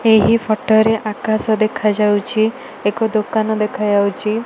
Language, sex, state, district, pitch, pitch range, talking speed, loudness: Odia, female, Odisha, Malkangiri, 215 Hz, 210-220 Hz, 110 wpm, -16 LUFS